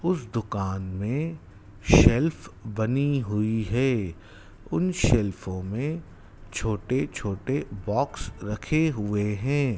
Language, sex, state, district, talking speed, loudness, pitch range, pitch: Hindi, male, Madhya Pradesh, Dhar, 100 wpm, -26 LUFS, 100-135 Hz, 105 Hz